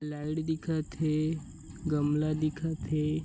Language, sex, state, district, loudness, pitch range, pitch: Chhattisgarhi, male, Chhattisgarh, Bilaspur, -32 LUFS, 150-160 Hz, 155 Hz